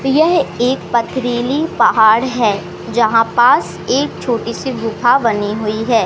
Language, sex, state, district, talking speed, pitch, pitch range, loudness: Hindi, male, Madhya Pradesh, Katni, 140 wpm, 235 Hz, 220-255 Hz, -15 LUFS